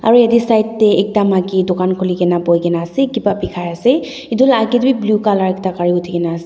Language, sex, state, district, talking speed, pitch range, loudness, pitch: Nagamese, female, Nagaland, Dimapur, 215 wpm, 175-230 Hz, -15 LUFS, 200 Hz